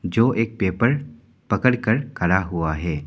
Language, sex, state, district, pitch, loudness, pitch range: Hindi, male, Arunachal Pradesh, Papum Pare, 115 Hz, -21 LUFS, 90-125 Hz